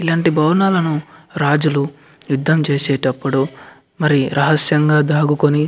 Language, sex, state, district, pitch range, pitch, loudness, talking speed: Telugu, male, Andhra Pradesh, Anantapur, 140-155 Hz, 150 Hz, -16 LUFS, 95 wpm